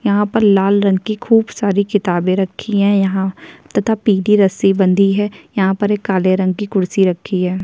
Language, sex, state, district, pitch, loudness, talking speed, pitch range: Hindi, female, Chhattisgarh, Kabirdham, 195 Hz, -15 LUFS, 195 wpm, 190-205 Hz